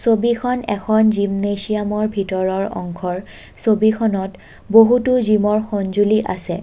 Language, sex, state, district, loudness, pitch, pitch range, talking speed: Assamese, female, Assam, Kamrup Metropolitan, -18 LUFS, 210 Hz, 195-220 Hz, 90 wpm